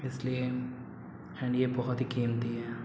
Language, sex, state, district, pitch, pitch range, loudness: Hindi, male, Uttar Pradesh, Muzaffarnagar, 125 Hz, 115-125 Hz, -33 LUFS